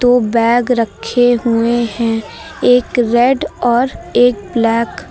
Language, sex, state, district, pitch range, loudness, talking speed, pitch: Hindi, female, Uttar Pradesh, Lucknow, 230-245 Hz, -14 LUFS, 130 wpm, 240 Hz